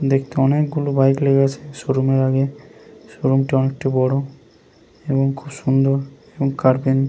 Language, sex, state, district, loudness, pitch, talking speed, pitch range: Bengali, male, West Bengal, Paschim Medinipur, -19 LUFS, 135 Hz, 150 wpm, 135-140 Hz